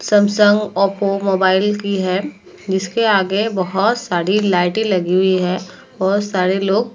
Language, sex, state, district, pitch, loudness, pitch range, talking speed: Hindi, female, Uttar Pradesh, Muzaffarnagar, 195 Hz, -16 LUFS, 185-205 Hz, 145 wpm